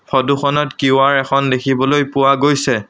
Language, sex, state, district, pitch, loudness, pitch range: Assamese, male, Assam, Sonitpur, 135 Hz, -14 LUFS, 135-140 Hz